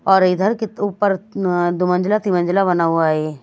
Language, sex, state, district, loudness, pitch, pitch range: Hindi, female, Haryana, Jhajjar, -18 LUFS, 185 Hz, 175-200 Hz